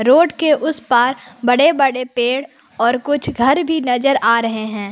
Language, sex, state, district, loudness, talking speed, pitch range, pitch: Hindi, female, Jharkhand, Palamu, -16 LUFS, 185 wpm, 240-290 Hz, 255 Hz